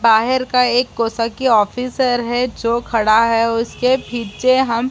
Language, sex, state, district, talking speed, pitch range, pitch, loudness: Hindi, female, Bihar, Gopalganj, 160 wpm, 230-250 Hz, 240 Hz, -16 LUFS